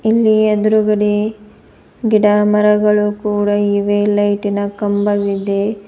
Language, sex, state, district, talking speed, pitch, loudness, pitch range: Kannada, female, Karnataka, Bidar, 80 wpm, 210 Hz, -15 LUFS, 205-210 Hz